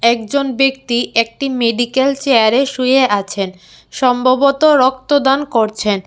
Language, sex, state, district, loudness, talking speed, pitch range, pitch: Bengali, female, Tripura, West Tripura, -14 LUFS, 100 wpm, 230-270 Hz, 255 Hz